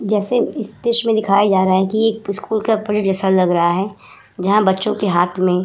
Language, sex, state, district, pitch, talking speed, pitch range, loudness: Hindi, female, Uttar Pradesh, Hamirpur, 200 Hz, 245 wpm, 190-215 Hz, -17 LUFS